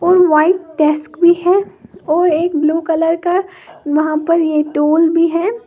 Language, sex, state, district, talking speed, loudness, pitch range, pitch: Hindi, female, Uttar Pradesh, Lalitpur, 170 wpm, -14 LUFS, 310-350 Hz, 330 Hz